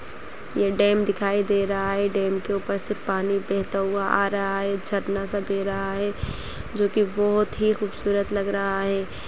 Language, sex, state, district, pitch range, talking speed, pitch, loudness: Kumaoni, female, Uttarakhand, Uttarkashi, 195-205 Hz, 180 wpm, 200 Hz, -24 LUFS